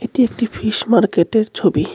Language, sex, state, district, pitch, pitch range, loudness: Bengali, male, West Bengal, Cooch Behar, 225 Hz, 215-235 Hz, -17 LUFS